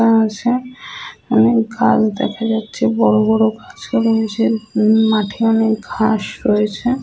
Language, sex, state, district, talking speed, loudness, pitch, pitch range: Bengali, female, Jharkhand, Sahebganj, 120 wpm, -16 LUFS, 220 Hz, 195-225 Hz